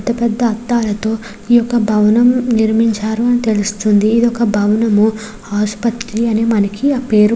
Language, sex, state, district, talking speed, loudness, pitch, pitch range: Telugu, female, Andhra Pradesh, Srikakulam, 145 wpm, -14 LUFS, 225 Hz, 215-235 Hz